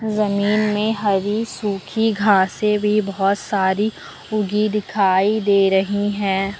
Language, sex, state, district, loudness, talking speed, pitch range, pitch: Hindi, female, Uttar Pradesh, Lucknow, -19 LUFS, 120 wpm, 195-215 Hz, 205 Hz